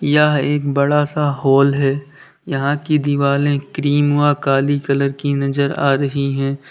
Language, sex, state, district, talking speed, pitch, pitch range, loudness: Hindi, male, Uttar Pradesh, Lalitpur, 160 wpm, 140 Hz, 140-145 Hz, -17 LUFS